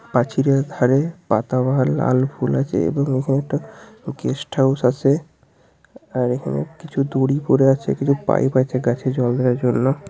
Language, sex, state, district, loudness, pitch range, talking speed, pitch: Bengali, male, West Bengal, Purulia, -19 LUFS, 130-140 Hz, 155 wpm, 135 Hz